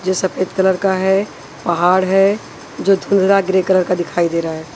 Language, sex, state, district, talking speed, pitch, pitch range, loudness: Hindi, female, Punjab, Pathankot, 200 wpm, 190 Hz, 175-195 Hz, -16 LUFS